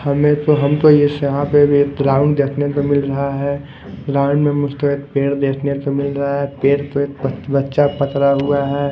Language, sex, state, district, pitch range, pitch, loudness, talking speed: Hindi, male, Chandigarh, Chandigarh, 140-145 Hz, 140 Hz, -16 LUFS, 190 wpm